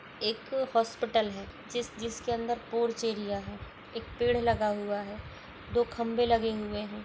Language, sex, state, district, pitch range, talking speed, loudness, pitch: Hindi, female, Maharashtra, Dhule, 210-240 Hz, 160 wpm, -31 LUFS, 230 Hz